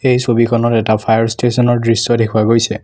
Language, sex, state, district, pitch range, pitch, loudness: Assamese, male, Assam, Kamrup Metropolitan, 110-120 Hz, 115 Hz, -13 LUFS